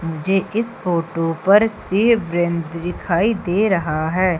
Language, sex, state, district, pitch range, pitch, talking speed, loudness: Hindi, female, Madhya Pradesh, Umaria, 170-210 Hz, 180 Hz, 120 wpm, -19 LUFS